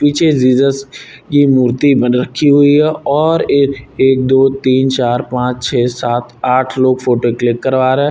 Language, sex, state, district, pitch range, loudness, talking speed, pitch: Hindi, male, Uttar Pradesh, Lucknow, 125-140 Hz, -12 LUFS, 175 wpm, 130 Hz